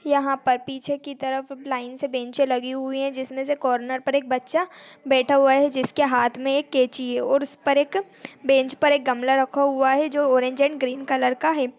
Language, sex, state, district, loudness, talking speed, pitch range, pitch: Hindi, female, Chhattisgarh, Kabirdham, -22 LUFS, 225 wpm, 260-280 Hz, 270 Hz